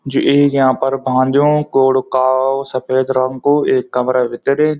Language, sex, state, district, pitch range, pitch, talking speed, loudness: Garhwali, male, Uttarakhand, Uttarkashi, 130-140 Hz, 130 Hz, 150 wpm, -15 LUFS